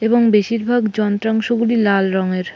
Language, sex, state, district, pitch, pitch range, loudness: Bengali, female, West Bengal, Purulia, 220 Hz, 200-230 Hz, -17 LUFS